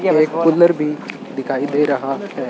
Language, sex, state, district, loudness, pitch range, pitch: Hindi, male, Rajasthan, Bikaner, -17 LUFS, 140-170 Hz, 150 Hz